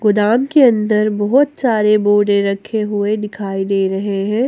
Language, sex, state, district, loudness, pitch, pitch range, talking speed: Hindi, female, Jharkhand, Ranchi, -15 LUFS, 210 Hz, 205-220 Hz, 160 wpm